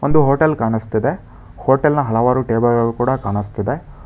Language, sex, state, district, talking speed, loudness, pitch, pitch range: Kannada, male, Karnataka, Bangalore, 120 wpm, -17 LUFS, 120 Hz, 110-140 Hz